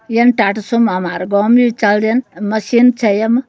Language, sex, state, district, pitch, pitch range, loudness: Garhwali, female, Uttarakhand, Uttarkashi, 225 Hz, 205-240 Hz, -13 LUFS